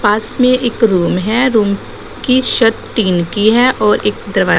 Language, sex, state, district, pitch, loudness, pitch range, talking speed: Hindi, female, Assam, Sonitpur, 225 Hz, -13 LUFS, 205-245 Hz, 185 wpm